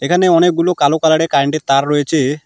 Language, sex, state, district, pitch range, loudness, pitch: Bengali, male, West Bengal, Alipurduar, 145-170 Hz, -13 LUFS, 155 Hz